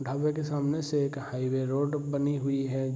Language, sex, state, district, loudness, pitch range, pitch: Hindi, male, Bihar, Saharsa, -30 LUFS, 135-145 Hz, 140 Hz